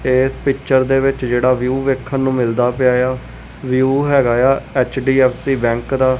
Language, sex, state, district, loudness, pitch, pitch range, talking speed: Punjabi, male, Punjab, Kapurthala, -16 LUFS, 130 Hz, 125-135 Hz, 165 wpm